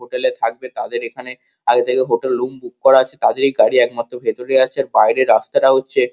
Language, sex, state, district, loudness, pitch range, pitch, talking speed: Bengali, male, West Bengal, Kolkata, -16 LUFS, 125-180 Hz, 130 Hz, 215 wpm